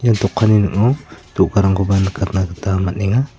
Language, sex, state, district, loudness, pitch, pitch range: Garo, male, Meghalaya, South Garo Hills, -16 LUFS, 100 Hz, 95-110 Hz